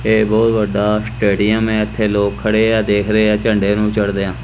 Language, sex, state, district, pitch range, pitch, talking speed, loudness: Punjabi, male, Punjab, Kapurthala, 105-110 Hz, 105 Hz, 200 wpm, -15 LUFS